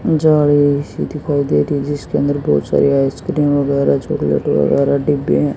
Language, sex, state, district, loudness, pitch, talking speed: Hindi, female, Haryana, Jhajjar, -15 LUFS, 140 Hz, 170 wpm